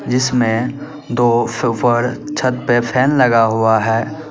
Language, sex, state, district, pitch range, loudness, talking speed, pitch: Hindi, male, Uttar Pradesh, Lalitpur, 115-130 Hz, -16 LUFS, 125 wpm, 120 Hz